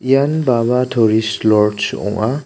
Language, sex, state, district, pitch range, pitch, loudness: Garo, male, Meghalaya, South Garo Hills, 110-130 Hz, 115 Hz, -15 LUFS